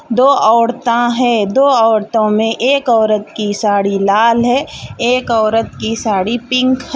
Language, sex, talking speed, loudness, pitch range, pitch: Hindi, female, 155 wpm, -13 LUFS, 215-250 Hz, 230 Hz